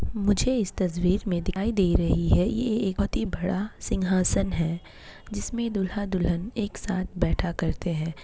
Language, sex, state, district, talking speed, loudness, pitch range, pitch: Hindi, female, Bihar, Kishanganj, 175 wpm, -26 LUFS, 175-205 Hz, 190 Hz